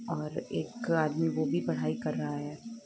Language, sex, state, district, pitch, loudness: Hindi, female, Andhra Pradesh, Guntur, 150 Hz, -32 LUFS